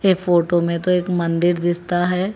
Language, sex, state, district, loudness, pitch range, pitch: Hindi, female, Telangana, Hyderabad, -19 LUFS, 170-180 Hz, 175 Hz